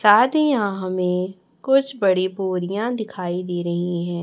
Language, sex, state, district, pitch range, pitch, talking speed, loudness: Hindi, male, Chhattisgarh, Raipur, 180-215 Hz, 190 Hz, 155 wpm, -21 LUFS